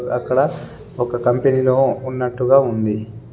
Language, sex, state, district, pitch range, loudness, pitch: Telugu, male, Telangana, Adilabad, 120-130 Hz, -18 LUFS, 125 Hz